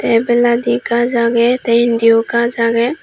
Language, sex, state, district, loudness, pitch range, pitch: Chakma, female, Tripura, Dhalai, -13 LUFS, 235-240 Hz, 235 Hz